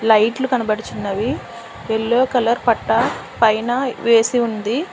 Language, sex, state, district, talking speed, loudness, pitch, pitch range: Telugu, female, Telangana, Hyderabad, 95 wpm, -18 LUFS, 235 Hz, 220-250 Hz